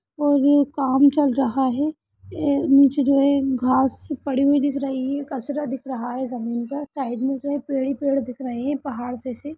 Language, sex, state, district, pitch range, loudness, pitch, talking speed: Hindi, female, Bihar, Lakhisarai, 260-285 Hz, -22 LUFS, 275 Hz, 215 wpm